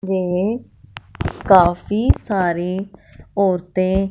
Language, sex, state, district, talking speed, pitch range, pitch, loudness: Hindi, female, Punjab, Fazilka, 60 wpm, 180-195 Hz, 190 Hz, -19 LUFS